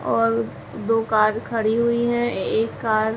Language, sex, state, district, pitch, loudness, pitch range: Hindi, female, Uttar Pradesh, Ghazipur, 220 Hz, -21 LUFS, 215-230 Hz